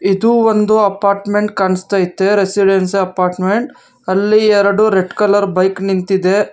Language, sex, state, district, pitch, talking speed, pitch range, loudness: Kannada, male, Karnataka, Bangalore, 200 Hz, 110 wpm, 190-210 Hz, -13 LUFS